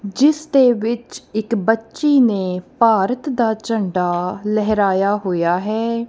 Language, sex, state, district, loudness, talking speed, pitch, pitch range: Punjabi, female, Punjab, Kapurthala, -18 LUFS, 120 wpm, 220 Hz, 195-235 Hz